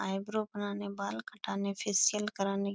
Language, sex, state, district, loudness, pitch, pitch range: Hindi, female, Uttar Pradesh, Etah, -34 LUFS, 200 Hz, 195-205 Hz